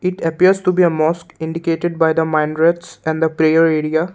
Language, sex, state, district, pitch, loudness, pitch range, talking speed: English, male, Assam, Kamrup Metropolitan, 165 Hz, -16 LUFS, 160-170 Hz, 205 wpm